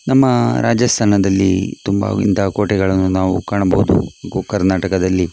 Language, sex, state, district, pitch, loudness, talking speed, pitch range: Kannada, male, Karnataka, Dakshina Kannada, 95 Hz, -16 LUFS, 110 wpm, 95-105 Hz